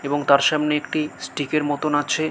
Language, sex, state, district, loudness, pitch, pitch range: Bengali, male, West Bengal, Malda, -21 LUFS, 150 Hz, 145-155 Hz